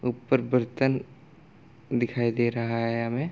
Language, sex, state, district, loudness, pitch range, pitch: Hindi, male, Bihar, Gopalganj, -27 LUFS, 115-125 Hz, 120 Hz